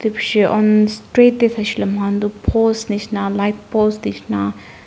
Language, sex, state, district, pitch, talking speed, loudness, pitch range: Nagamese, female, Nagaland, Dimapur, 210 Hz, 160 wpm, -17 LUFS, 200-220 Hz